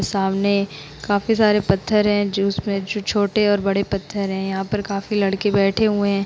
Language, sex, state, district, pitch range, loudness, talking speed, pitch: Hindi, female, Bihar, Vaishali, 195-205 Hz, -20 LUFS, 190 wpm, 200 Hz